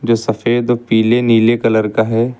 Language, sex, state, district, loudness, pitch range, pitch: Hindi, male, Uttar Pradesh, Lucknow, -14 LUFS, 110-120 Hz, 115 Hz